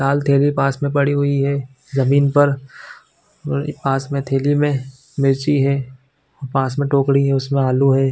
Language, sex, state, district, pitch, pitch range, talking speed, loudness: Hindi, male, Chhattisgarh, Bilaspur, 140 Hz, 135-140 Hz, 170 wpm, -18 LUFS